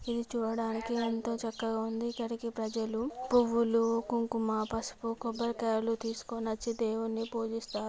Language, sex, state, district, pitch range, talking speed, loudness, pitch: Telugu, female, Andhra Pradesh, Guntur, 225-235 Hz, 105 wpm, -33 LUFS, 230 Hz